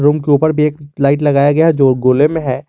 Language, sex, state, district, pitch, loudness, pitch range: Hindi, male, Jharkhand, Garhwa, 145 Hz, -12 LUFS, 140-150 Hz